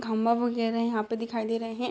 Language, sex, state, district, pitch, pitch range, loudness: Hindi, female, Bihar, Muzaffarpur, 230 Hz, 225-235 Hz, -28 LUFS